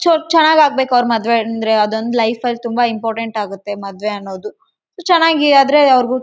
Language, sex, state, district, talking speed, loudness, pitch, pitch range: Kannada, female, Karnataka, Raichur, 50 wpm, -14 LUFS, 235 Hz, 220-285 Hz